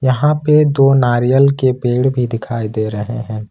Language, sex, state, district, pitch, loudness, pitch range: Hindi, male, Jharkhand, Ranchi, 125 Hz, -14 LUFS, 115-135 Hz